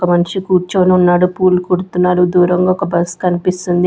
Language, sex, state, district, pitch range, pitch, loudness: Telugu, female, Andhra Pradesh, Sri Satya Sai, 180-185 Hz, 180 Hz, -13 LUFS